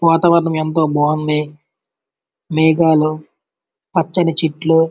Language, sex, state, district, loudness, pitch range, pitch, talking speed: Telugu, male, Andhra Pradesh, Srikakulam, -15 LUFS, 155-165 Hz, 160 Hz, 75 wpm